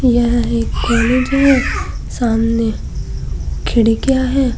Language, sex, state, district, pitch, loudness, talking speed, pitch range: Hindi, female, Uttar Pradesh, Saharanpur, 240 Hz, -16 LUFS, 90 wpm, 230-260 Hz